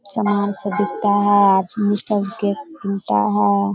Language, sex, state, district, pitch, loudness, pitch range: Hindi, female, Bihar, Sitamarhi, 205 Hz, -18 LUFS, 195-205 Hz